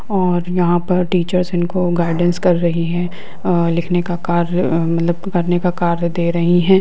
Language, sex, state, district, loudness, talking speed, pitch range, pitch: Hindi, female, Bihar, Lakhisarai, -17 LUFS, 185 wpm, 170-180 Hz, 175 Hz